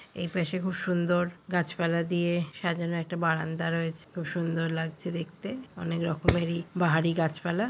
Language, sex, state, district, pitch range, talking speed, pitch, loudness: Bengali, female, West Bengal, Paschim Medinipur, 165-175 Hz, 140 wpm, 170 Hz, -29 LUFS